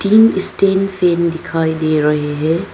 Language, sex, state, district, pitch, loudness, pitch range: Hindi, female, Arunachal Pradesh, Papum Pare, 170 Hz, -15 LUFS, 160-195 Hz